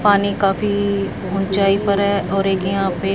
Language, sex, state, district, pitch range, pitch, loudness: Hindi, female, Haryana, Jhajjar, 195-200 Hz, 195 Hz, -18 LUFS